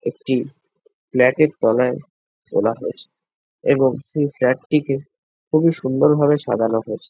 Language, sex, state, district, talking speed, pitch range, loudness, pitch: Bengali, male, West Bengal, Jhargram, 125 wpm, 125-150 Hz, -19 LUFS, 140 Hz